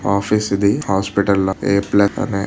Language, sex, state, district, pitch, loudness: Telugu, male, Andhra Pradesh, Visakhapatnam, 100 Hz, -17 LUFS